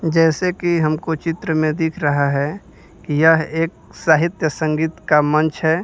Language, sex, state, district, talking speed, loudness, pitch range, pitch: Hindi, male, Bihar, Kaimur, 165 wpm, -18 LUFS, 155-165 Hz, 160 Hz